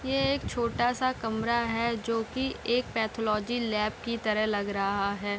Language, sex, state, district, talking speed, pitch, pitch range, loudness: Hindi, female, Bihar, Sitamarhi, 165 wpm, 230 Hz, 215-240 Hz, -29 LUFS